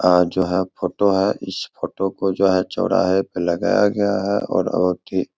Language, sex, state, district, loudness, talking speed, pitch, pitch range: Hindi, male, Bihar, Begusarai, -20 LUFS, 200 wpm, 95 Hz, 90-100 Hz